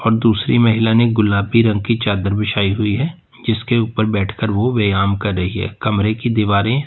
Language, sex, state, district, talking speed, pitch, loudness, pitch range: Hindi, male, Uttar Pradesh, Lalitpur, 185 wpm, 110 Hz, -17 LUFS, 100-115 Hz